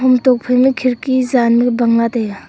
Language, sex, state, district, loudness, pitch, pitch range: Wancho, female, Arunachal Pradesh, Longding, -14 LUFS, 250 Hz, 235-255 Hz